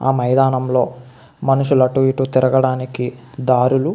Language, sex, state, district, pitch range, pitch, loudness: Telugu, male, Andhra Pradesh, Visakhapatnam, 125-135 Hz, 130 Hz, -17 LUFS